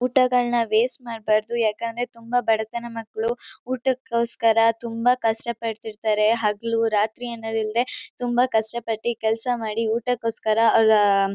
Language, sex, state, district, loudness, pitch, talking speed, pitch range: Kannada, female, Karnataka, Chamarajanagar, -22 LUFS, 230 Hz, 100 wpm, 220-240 Hz